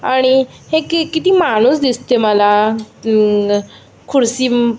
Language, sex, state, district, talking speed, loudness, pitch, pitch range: Marathi, female, Maharashtra, Aurangabad, 115 wpm, -14 LUFS, 245 Hz, 215-275 Hz